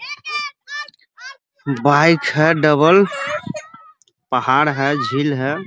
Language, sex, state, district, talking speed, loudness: Hindi, male, Bihar, Muzaffarpur, 85 wpm, -16 LUFS